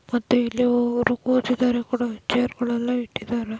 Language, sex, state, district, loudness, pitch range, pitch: Kannada, female, Karnataka, Dakshina Kannada, -23 LUFS, 240-245 Hz, 245 Hz